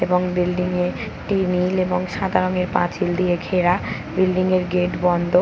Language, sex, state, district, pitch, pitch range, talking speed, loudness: Bengali, female, West Bengal, Paschim Medinipur, 180 Hz, 180-185 Hz, 165 wpm, -21 LUFS